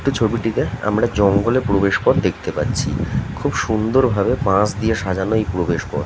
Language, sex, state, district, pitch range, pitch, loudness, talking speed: Bengali, male, West Bengal, North 24 Parganas, 100-115 Hz, 110 Hz, -18 LUFS, 150 wpm